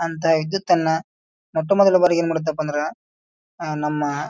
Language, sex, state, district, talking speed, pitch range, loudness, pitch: Kannada, male, Karnataka, Bijapur, 155 wpm, 150-170 Hz, -20 LUFS, 160 Hz